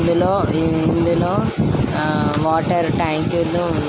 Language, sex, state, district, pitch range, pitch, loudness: Telugu, female, Andhra Pradesh, Krishna, 160-170 Hz, 170 Hz, -18 LUFS